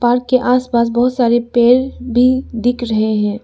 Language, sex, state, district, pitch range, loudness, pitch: Hindi, female, Arunachal Pradesh, Lower Dibang Valley, 235-250 Hz, -14 LUFS, 240 Hz